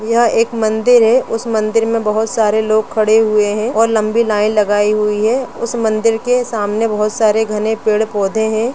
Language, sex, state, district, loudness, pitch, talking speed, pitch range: Hindi, female, Jharkhand, Jamtara, -14 LUFS, 220 Hz, 200 wpm, 215-230 Hz